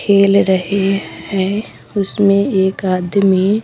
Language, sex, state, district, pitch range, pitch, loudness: Hindi, female, Bihar, Patna, 190-200 Hz, 195 Hz, -15 LUFS